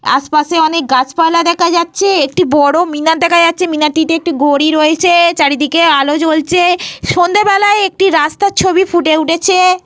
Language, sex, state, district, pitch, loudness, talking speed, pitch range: Bengali, female, Jharkhand, Jamtara, 335 Hz, -11 LUFS, 140 wpm, 310-355 Hz